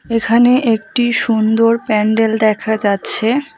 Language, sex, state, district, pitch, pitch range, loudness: Bengali, female, West Bengal, Alipurduar, 225 Hz, 220-235 Hz, -13 LUFS